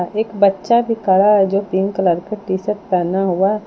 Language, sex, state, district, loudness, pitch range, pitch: Hindi, female, Jharkhand, Palamu, -16 LUFS, 190-210 Hz, 195 Hz